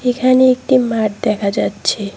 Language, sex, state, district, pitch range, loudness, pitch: Bengali, female, West Bengal, Cooch Behar, 205-255 Hz, -15 LUFS, 245 Hz